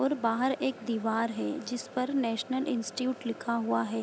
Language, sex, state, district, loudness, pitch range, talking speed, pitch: Hindi, female, Bihar, Gopalganj, -31 LUFS, 225-260 Hz, 165 wpm, 240 Hz